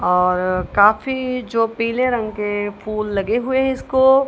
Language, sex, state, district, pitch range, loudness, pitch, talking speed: Hindi, female, Punjab, Kapurthala, 205-255 Hz, -19 LUFS, 225 Hz, 155 wpm